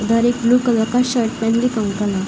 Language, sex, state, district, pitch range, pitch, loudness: Hindi, female, Uttar Pradesh, Varanasi, 220-240 Hz, 230 Hz, -17 LUFS